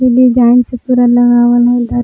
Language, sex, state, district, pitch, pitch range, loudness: Magahi, female, Jharkhand, Palamu, 245 Hz, 240-245 Hz, -9 LUFS